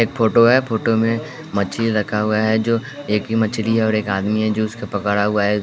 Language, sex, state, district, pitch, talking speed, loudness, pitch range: Hindi, male, Bihar, West Champaran, 110 Hz, 245 wpm, -18 LUFS, 105-115 Hz